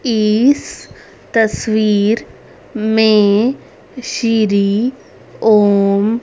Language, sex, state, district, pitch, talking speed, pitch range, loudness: Hindi, female, Haryana, Rohtak, 220 Hz, 50 wpm, 210-230 Hz, -14 LUFS